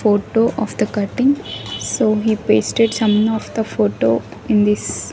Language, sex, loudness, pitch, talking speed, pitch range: English, female, -18 LUFS, 215 Hz, 165 wpm, 155-220 Hz